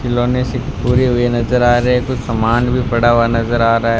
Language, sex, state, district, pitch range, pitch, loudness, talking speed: Hindi, male, Rajasthan, Bikaner, 115-125 Hz, 120 Hz, -14 LUFS, 255 wpm